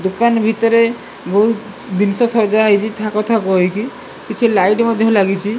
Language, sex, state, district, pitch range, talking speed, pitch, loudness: Odia, male, Odisha, Malkangiri, 205-230 Hz, 140 wpm, 220 Hz, -15 LUFS